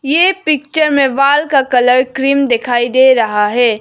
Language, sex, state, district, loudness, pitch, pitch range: Hindi, female, Arunachal Pradesh, Lower Dibang Valley, -12 LUFS, 265 Hz, 245-285 Hz